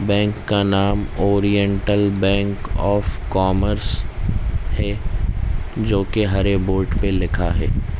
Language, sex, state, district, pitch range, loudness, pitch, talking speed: Hindi, male, Uttar Pradesh, Deoria, 95-100 Hz, -20 LUFS, 100 Hz, 105 wpm